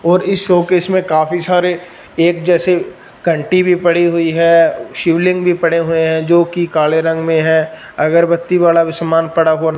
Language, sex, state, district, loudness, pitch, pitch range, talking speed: Hindi, male, Punjab, Fazilka, -13 LUFS, 170 Hz, 165-180 Hz, 185 wpm